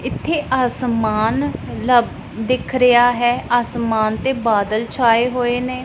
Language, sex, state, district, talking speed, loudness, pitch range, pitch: Punjabi, female, Punjab, Pathankot, 125 wpm, -17 LUFS, 225-255 Hz, 245 Hz